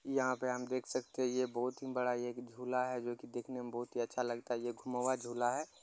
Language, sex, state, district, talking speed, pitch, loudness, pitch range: Maithili, male, Bihar, Darbhanga, 255 wpm, 125 Hz, -38 LUFS, 120-125 Hz